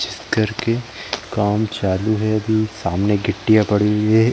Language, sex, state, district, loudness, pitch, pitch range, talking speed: Hindi, male, Chhattisgarh, Bilaspur, -19 LUFS, 110 Hz, 105-110 Hz, 165 wpm